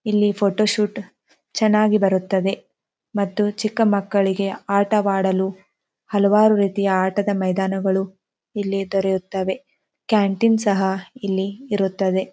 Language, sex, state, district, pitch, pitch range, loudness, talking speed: Kannada, female, Karnataka, Dharwad, 200 Hz, 190-210 Hz, -20 LUFS, 95 wpm